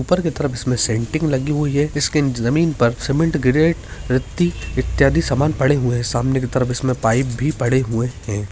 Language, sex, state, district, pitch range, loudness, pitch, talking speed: Hindi, male, Andhra Pradesh, Visakhapatnam, 120-150 Hz, -19 LUFS, 130 Hz, 195 wpm